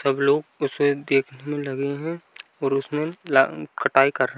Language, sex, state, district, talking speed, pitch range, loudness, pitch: Hindi, male, Bihar, Bhagalpur, 180 wpm, 135-150 Hz, -23 LUFS, 140 Hz